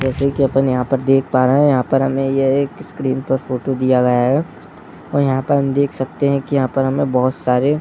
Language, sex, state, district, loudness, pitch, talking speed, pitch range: Hindi, male, Bihar, Muzaffarpur, -17 LUFS, 135 Hz, 260 wpm, 130-140 Hz